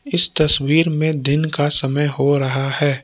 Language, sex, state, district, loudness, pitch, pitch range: Hindi, male, Jharkhand, Palamu, -15 LUFS, 145 Hz, 140-155 Hz